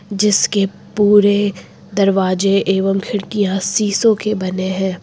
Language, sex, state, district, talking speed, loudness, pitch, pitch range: Hindi, female, Uttar Pradesh, Lucknow, 105 wpm, -16 LUFS, 200 Hz, 195-205 Hz